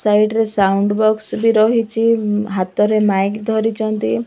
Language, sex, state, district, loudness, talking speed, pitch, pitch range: Odia, female, Odisha, Malkangiri, -16 LUFS, 125 wpm, 215 Hz, 205-220 Hz